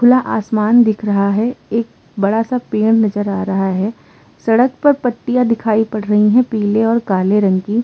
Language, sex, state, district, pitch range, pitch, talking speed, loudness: Hindi, female, Uttar Pradesh, Muzaffarnagar, 205-235 Hz, 220 Hz, 190 wpm, -15 LUFS